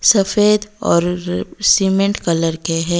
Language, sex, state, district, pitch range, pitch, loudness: Hindi, female, Odisha, Malkangiri, 170-205 Hz, 180 Hz, -16 LUFS